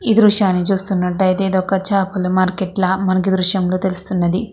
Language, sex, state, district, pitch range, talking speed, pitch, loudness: Telugu, female, Andhra Pradesh, Krishna, 185-195 Hz, 120 wpm, 190 Hz, -17 LUFS